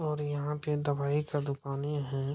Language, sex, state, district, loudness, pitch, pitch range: Hindi, male, Bihar, Kishanganj, -33 LUFS, 145 Hz, 140-150 Hz